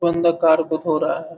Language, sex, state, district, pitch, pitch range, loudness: Hindi, male, Bihar, Gopalganj, 160 Hz, 160-170 Hz, -19 LUFS